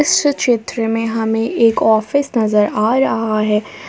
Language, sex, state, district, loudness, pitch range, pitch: Hindi, female, Jharkhand, Palamu, -15 LUFS, 220-255 Hz, 225 Hz